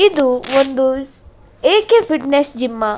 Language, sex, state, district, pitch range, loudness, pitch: Kannada, female, Karnataka, Dakshina Kannada, 255-355 Hz, -15 LUFS, 275 Hz